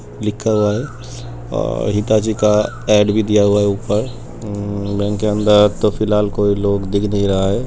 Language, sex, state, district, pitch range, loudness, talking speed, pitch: Hindi, male, Uttar Pradesh, Jalaun, 100-105 Hz, -16 LUFS, 195 wpm, 105 Hz